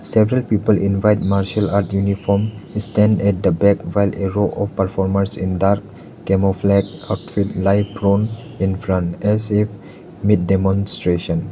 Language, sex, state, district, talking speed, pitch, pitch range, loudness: English, male, Arunachal Pradesh, Lower Dibang Valley, 145 wpm, 100 Hz, 95-105 Hz, -18 LUFS